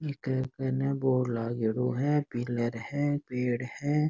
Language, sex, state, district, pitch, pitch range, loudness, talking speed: Rajasthani, male, Rajasthan, Nagaur, 130 Hz, 120-145 Hz, -30 LUFS, 115 wpm